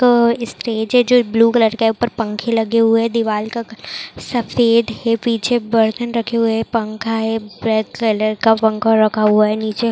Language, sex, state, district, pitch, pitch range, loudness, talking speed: Hindi, female, Chhattisgarh, Rajnandgaon, 225 Hz, 220-235 Hz, -16 LUFS, 195 wpm